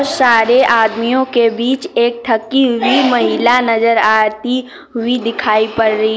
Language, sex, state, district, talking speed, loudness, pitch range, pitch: Hindi, female, Jharkhand, Deoghar, 145 wpm, -13 LUFS, 225-255 Hz, 235 Hz